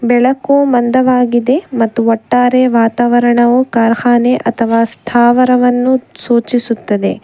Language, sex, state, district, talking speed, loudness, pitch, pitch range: Kannada, female, Karnataka, Bangalore, 75 wpm, -11 LUFS, 240 Hz, 230-250 Hz